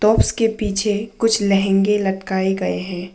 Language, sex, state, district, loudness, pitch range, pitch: Hindi, female, Arunachal Pradesh, Papum Pare, -19 LUFS, 190-215 Hz, 195 Hz